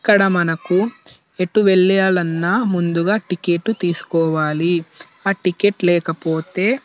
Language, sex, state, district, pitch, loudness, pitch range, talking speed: Telugu, male, Telangana, Nalgonda, 180 Hz, -18 LUFS, 170-195 Hz, 95 wpm